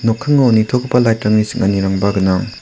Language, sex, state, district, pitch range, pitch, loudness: Garo, male, Meghalaya, South Garo Hills, 100-120 Hz, 110 Hz, -14 LUFS